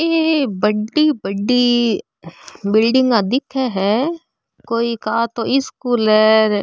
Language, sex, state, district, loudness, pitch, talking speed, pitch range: Marwari, female, Rajasthan, Nagaur, -17 LUFS, 235 Hz, 110 wpm, 215-265 Hz